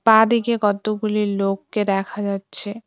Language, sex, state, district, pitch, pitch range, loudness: Bengali, female, West Bengal, Cooch Behar, 210 Hz, 200-220 Hz, -20 LUFS